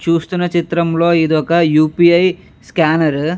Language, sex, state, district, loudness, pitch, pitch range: Telugu, male, Andhra Pradesh, Chittoor, -14 LUFS, 170 Hz, 160-170 Hz